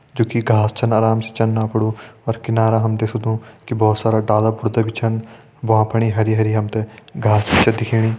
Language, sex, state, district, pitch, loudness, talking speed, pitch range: Hindi, male, Uttarakhand, Tehri Garhwal, 110 Hz, -18 LUFS, 210 wpm, 110-115 Hz